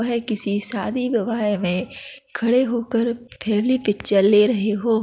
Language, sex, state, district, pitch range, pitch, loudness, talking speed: Hindi, female, Chhattisgarh, Kabirdham, 210-240 Hz, 230 Hz, -19 LUFS, 145 wpm